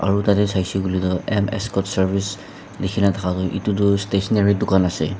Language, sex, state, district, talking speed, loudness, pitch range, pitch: Nagamese, male, Nagaland, Dimapur, 175 wpm, -20 LUFS, 95-100 Hz, 100 Hz